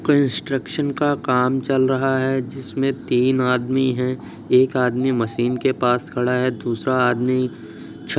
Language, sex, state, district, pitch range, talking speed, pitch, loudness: Hindi, male, Uttar Pradesh, Jyotiba Phule Nagar, 125-135 Hz, 155 wpm, 130 Hz, -20 LUFS